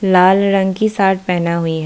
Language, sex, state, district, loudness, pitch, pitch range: Hindi, female, Bihar, Kishanganj, -14 LUFS, 190 Hz, 175-195 Hz